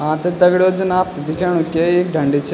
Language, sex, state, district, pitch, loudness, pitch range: Garhwali, male, Uttarakhand, Tehri Garhwal, 175 Hz, -16 LUFS, 155-180 Hz